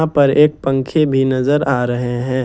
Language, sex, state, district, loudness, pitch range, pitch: Hindi, male, Jharkhand, Ranchi, -15 LUFS, 130-145 Hz, 135 Hz